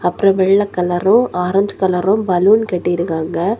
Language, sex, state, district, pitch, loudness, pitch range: Tamil, female, Tamil Nadu, Kanyakumari, 185 Hz, -15 LUFS, 180-200 Hz